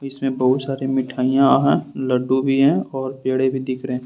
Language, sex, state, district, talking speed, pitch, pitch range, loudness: Hindi, male, Jharkhand, Ranchi, 205 wpm, 130 Hz, 130-135 Hz, -19 LUFS